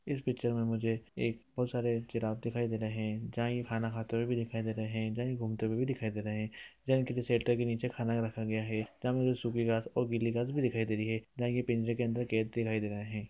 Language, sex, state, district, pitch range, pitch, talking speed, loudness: Hindi, male, Bihar, East Champaran, 110-120 Hz, 115 Hz, 295 wpm, -34 LUFS